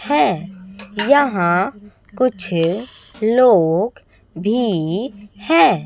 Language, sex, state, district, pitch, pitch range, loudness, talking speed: Hindi, female, Chhattisgarh, Raipur, 205 Hz, 180-245 Hz, -17 LUFS, 60 wpm